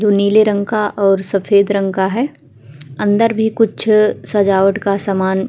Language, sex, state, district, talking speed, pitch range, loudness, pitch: Hindi, female, Bihar, Vaishali, 195 wpm, 195-215 Hz, -15 LUFS, 200 Hz